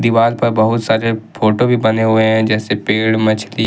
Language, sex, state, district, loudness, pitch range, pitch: Hindi, male, Jharkhand, Ranchi, -14 LUFS, 110-115 Hz, 110 Hz